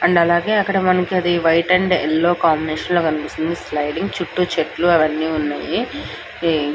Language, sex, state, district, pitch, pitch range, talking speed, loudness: Telugu, male, Andhra Pradesh, Anantapur, 170 Hz, 155-180 Hz, 175 wpm, -18 LUFS